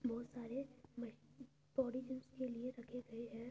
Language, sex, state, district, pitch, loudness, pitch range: Hindi, female, Uttar Pradesh, Etah, 250 Hz, -47 LUFS, 235-260 Hz